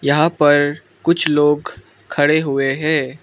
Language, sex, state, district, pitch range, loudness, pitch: Hindi, male, Arunachal Pradesh, Lower Dibang Valley, 145-155 Hz, -16 LUFS, 150 Hz